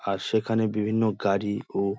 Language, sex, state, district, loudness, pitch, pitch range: Bengali, male, West Bengal, Dakshin Dinajpur, -26 LUFS, 105 Hz, 100-110 Hz